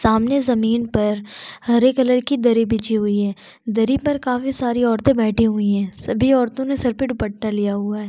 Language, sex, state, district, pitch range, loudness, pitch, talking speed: Hindi, female, Chhattisgarh, Sukma, 210-255 Hz, -19 LUFS, 230 Hz, 200 wpm